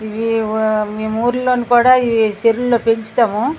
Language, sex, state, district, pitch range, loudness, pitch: Telugu, female, Andhra Pradesh, Srikakulam, 220-245 Hz, -15 LUFS, 230 Hz